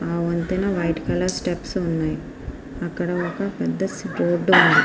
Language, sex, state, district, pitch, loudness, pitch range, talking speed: Telugu, female, Andhra Pradesh, Srikakulam, 170 Hz, -22 LUFS, 160-185 Hz, 135 wpm